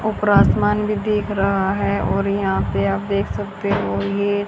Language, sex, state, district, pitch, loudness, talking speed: Hindi, female, Haryana, Rohtak, 190 Hz, -19 LUFS, 185 wpm